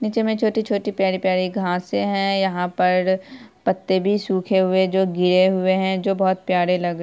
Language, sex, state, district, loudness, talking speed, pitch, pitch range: Hindi, female, Bihar, Saharsa, -20 LUFS, 190 wpm, 190 Hz, 185-195 Hz